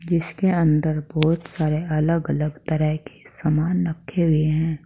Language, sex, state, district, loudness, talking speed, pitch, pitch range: Hindi, female, Uttar Pradesh, Saharanpur, -22 LUFS, 135 wpm, 155 Hz, 155-165 Hz